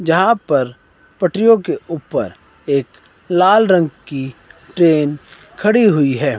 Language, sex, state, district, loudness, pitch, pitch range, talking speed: Hindi, male, Himachal Pradesh, Shimla, -15 LUFS, 165 Hz, 135-185 Hz, 120 wpm